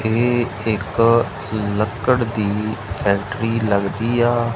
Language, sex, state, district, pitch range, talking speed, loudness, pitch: Punjabi, male, Punjab, Kapurthala, 105-120 Hz, 105 wpm, -19 LUFS, 110 Hz